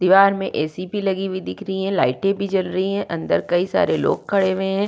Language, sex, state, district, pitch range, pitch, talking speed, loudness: Hindi, female, Uttar Pradesh, Budaun, 185-195 Hz, 190 Hz, 260 wpm, -20 LUFS